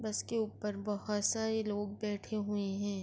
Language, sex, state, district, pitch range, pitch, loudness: Urdu, female, Andhra Pradesh, Anantapur, 205-215 Hz, 210 Hz, -36 LUFS